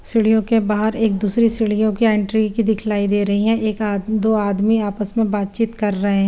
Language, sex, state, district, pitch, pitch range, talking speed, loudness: Hindi, female, Chandigarh, Chandigarh, 215 Hz, 205-220 Hz, 200 wpm, -17 LUFS